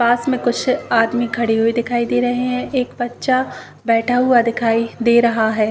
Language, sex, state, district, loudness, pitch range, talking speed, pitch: Hindi, female, Uttar Pradesh, Varanasi, -17 LUFS, 230-245 Hz, 190 wpm, 240 Hz